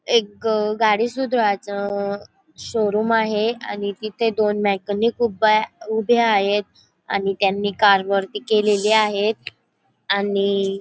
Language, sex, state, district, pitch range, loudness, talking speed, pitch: Marathi, female, Maharashtra, Dhule, 200-220 Hz, -20 LUFS, 130 wpm, 210 Hz